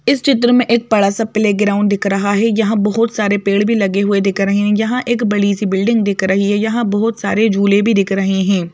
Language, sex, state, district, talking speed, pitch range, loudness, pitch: Hindi, female, Madhya Pradesh, Bhopal, 255 wpm, 200-225 Hz, -14 LUFS, 205 Hz